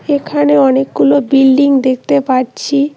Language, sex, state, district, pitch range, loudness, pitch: Bengali, female, West Bengal, Cooch Behar, 265-285 Hz, -11 LUFS, 280 Hz